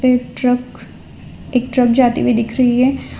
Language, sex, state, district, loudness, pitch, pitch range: Hindi, female, Gujarat, Valsad, -15 LUFS, 250 Hz, 245-255 Hz